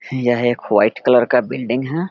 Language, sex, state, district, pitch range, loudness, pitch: Hindi, male, Bihar, Vaishali, 120-130 Hz, -17 LUFS, 125 Hz